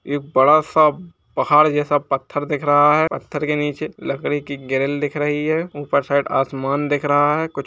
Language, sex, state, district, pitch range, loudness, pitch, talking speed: Hindi, male, Uttar Pradesh, Jalaun, 140-150 Hz, -18 LUFS, 145 Hz, 205 wpm